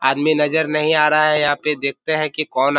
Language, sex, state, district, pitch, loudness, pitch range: Hindi, male, Bihar, Kishanganj, 150 Hz, -17 LUFS, 145-155 Hz